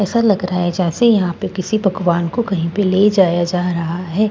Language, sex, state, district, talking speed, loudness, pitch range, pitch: Hindi, female, Bihar, Katihar, 265 wpm, -16 LUFS, 175-205 Hz, 185 Hz